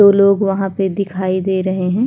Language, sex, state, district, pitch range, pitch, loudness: Hindi, female, Uttar Pradesh, Hamirpur, 185-200 Hz, 195 Hz, -16 LUFS